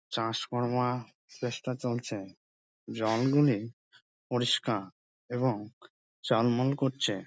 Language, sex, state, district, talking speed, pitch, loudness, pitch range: Bengali, male, West Bengal, Dakshin Dinajpur, 75 wpm, 120 Hz, -30 LUFS, 110-125 Hz